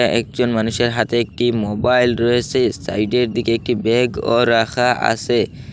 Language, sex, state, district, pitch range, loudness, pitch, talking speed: Bengali, male, Assam, Hailakandi, 115-120 Hz, -17 LUFS, 120 Hz, 125 wpm